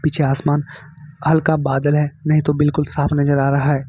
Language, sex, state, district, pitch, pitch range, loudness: Hindi, male, Jharkhand, Ranchi, 145 Hz, 145-155 Hz, -17 LUFS